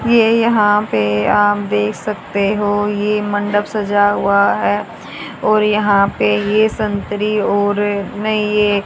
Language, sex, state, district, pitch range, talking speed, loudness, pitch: Hindi, female, Haryana, Charkhi Dadri, 205-210 Hz, 135 wpm, -15 LUFS, 205 Hz